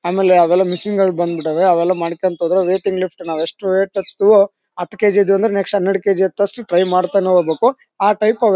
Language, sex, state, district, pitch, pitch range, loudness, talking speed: Kannada, male, Karnataka, Bellary, 190 Hz, 180-200 Hz, -16 LUFS, 195 wpm